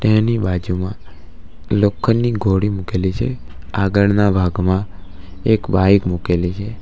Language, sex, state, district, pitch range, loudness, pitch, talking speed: Gujarati, male, Gujarat, Valsad, 90-105 Hz, -18 LUFS, 95 Hz, 105 wpm